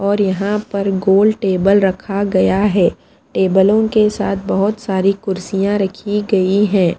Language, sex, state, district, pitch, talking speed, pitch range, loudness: Hindi, female, Bihar, Patna, 195 Hz, 145 wpm, 190-205 Hz, -15 LUFS